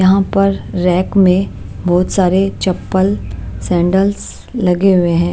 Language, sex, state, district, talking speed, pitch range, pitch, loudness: Hindi, female, Maharashtra, Washim, 125 wpm, 175-195 Hz, 185 Hz, -14 LUFS